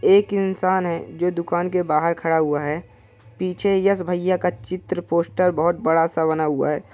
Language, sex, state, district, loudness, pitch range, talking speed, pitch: Hindi, male, Bihar, Purnia, -21 LUFS, 160-185 Hz, 190 wpm, 175 Hz